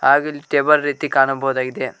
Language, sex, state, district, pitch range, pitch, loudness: Kannada, male, Karnataka, Koppal, 135-150 Hz, 140 Hz, -18 LUFS